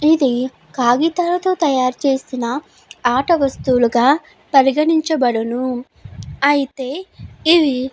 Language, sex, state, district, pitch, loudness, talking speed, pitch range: Telugu, female, Andhra Pradesh, Guntur, 270 Hz, -17 LUFS, 75 wpm, 255-315 Hz